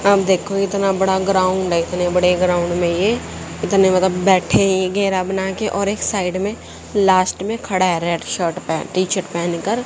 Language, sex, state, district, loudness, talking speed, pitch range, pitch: Hindi, female, Haryana, Jhajjar, -18 LUFS, 190 wpm, 180-195 Hz, 190 Hz